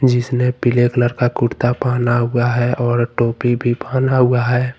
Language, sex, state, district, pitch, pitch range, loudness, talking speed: Hindi, male, Jharkhand, Ranchi, 120 Hz, 120-125 Hz, -16 LUFS, 175 wpm